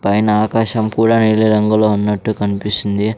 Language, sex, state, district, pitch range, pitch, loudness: Telugu, male, Andhra Pradesh, Sri Satya Sai, 105-110 Hz, 105 Hz, -15 LUFS